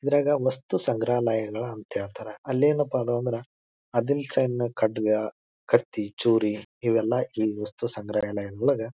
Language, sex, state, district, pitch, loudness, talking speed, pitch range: Kannada, male, Karnataka, Bijapur, 115 Hz, -26 LUFS, 120 wpm, 105-125 Hz